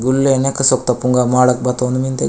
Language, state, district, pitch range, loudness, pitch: Gondi, Chhattisgarh, Sukma, 125-130 Hz, -14 LUFS, 125 Hz